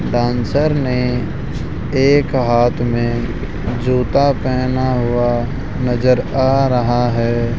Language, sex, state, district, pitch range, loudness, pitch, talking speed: Hindi, male, Rajasthan, Jaipur, 120-130 Hz, -16 LUFS, 125 Hz, 95 wpm